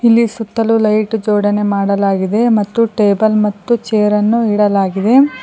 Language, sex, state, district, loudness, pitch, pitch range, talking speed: Kannada, female, Karnataka, Koppal, -13 LUFS, 215 Hz, 205-230 Hz, 110 wpm